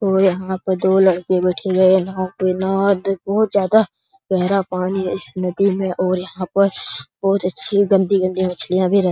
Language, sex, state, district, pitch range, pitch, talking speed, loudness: Hindi, male, Bihar, Jahanabad, 185-195 Hz, 190 Hz, 190 wpm, -18 LUFS